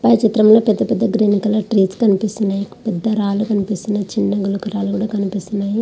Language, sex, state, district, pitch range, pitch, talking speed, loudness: Telugu, female, Andhra Pradesh, Visakhapatnam, 200-215 Hz, 210 Hz, 145 wpm, -17 LUFS